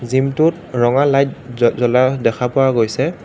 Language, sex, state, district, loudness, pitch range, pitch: Assamese, male, Assam, Kamrup Metropolitan, -16 LUFS, 120-135 Hz, 130 Hz